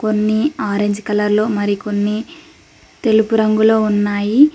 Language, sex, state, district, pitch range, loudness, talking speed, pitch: Telugu, female, Telangana, Mahabubabad, 205-220 Hz, -16 LUFS, 90 wpm, 215 Hz